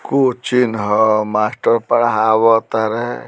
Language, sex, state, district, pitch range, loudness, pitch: Bhojpuri, male, Bihar, Muzaffarpur, 105-120 Hz, -15 LUFS, 110 Hz